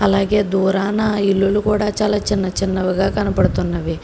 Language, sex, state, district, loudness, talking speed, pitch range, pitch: Telugu, female, Andhra Pradesh, Krishna, -18 LUFS, 120 wpm, 190-210 Hz, 195 Hz